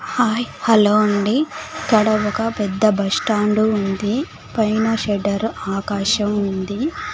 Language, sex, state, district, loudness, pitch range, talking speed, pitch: Telugu, female, Andhra Pradesh, Sri Satya Sai, -19 LUFS, 205-230 Hz, 90 wpm, 215 Hz